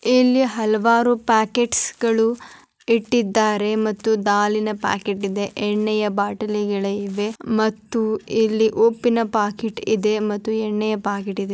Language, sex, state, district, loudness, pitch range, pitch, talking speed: Kannada, male, Karnataka, Dharwad, -20 LUFS, 210-225 Hz, 215 Hz, 105 wpm